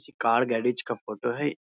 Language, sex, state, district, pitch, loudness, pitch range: Hindi, male, Bihar, Muzaffarpur, 120 Hz, -27 LUFS, 115-145 Hz